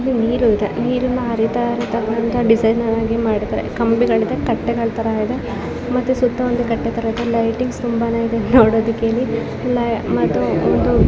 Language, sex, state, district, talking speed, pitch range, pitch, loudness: Kannada, female, Karnataka, Bijapur, 130 wpm, 225-240 Hz, 230 Hz, -18 LUFS